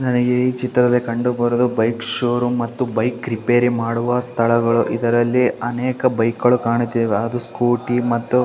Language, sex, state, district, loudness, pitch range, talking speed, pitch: Kannada, male, Karnataka, Shimoga, -18 LUFS, 115-125 Hz, 140 wpm, 120 Hz